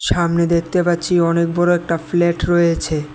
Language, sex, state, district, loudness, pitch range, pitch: Bengali, male, Tripura, West Tripura, -17 LUFS, 165-175 Hz, 170 Hz